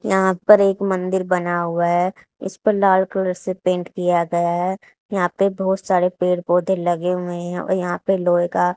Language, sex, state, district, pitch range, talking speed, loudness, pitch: Hindi, female, Haryana, Charkhi Dadri, 175-190 Hz, 205 wpm, -19 LUFS, 180 Hz